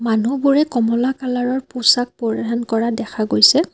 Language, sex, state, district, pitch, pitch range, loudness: Assamese, female, Assam, Kamrup Metropolitan, 240 Hz, 230-260 Hz, -17 LUFS